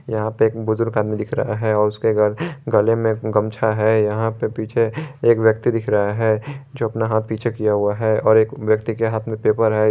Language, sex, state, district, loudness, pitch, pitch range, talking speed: Hindi, male, Jharkhand, Garhwa, -19 LUFS, 110 Hz, 110-115 Hz, 240 wpm